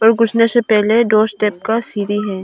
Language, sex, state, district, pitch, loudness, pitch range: Hindi, female, Arunachal Pradesh, Longding, 220 Hz, -14 LUFS, 210-230 Hz